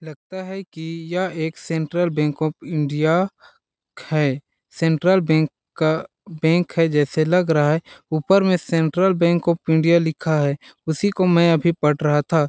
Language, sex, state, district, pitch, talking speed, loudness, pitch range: Hindi, male, Chhattisgarh, Balrampur, 160 Hz, 165 wpm, -20 LUFS, 155-175 Hz